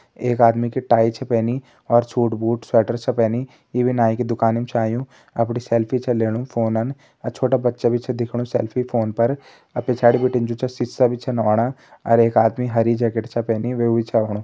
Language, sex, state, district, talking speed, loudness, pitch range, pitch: Hindi, male, Uttarakhand, Tehri Garhwal, 220 wpm, -20 LUFS, 115-125 Hz, 120 Hz